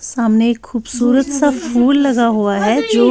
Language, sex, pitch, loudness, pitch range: Urdu, female, 240 Hz, -14 LUFS, 225-260 Hz